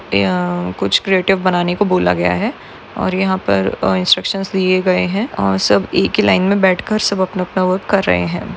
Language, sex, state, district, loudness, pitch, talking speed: Hindi, female, Maharashtra, Solapur, -15 LUFS, 185 Hz, 205 wpm